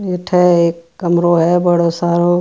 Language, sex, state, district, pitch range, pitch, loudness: Marwari, female, Rajasthan, Churu, 170-175 Hz, 175 Hz, -14 LUFS